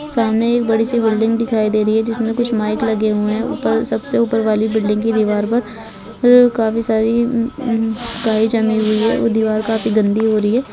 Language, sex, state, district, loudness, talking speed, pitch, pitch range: Hindi, female, Bihar, Bhagalpur, -16 LUFS, 195 wpm, 220 Hz, 215-230 Hz